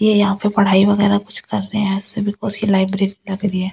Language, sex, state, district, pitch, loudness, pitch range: Hindi, female, Delhi, New Delhi, 200 Hz, -17 LUFS, 195-205 Hz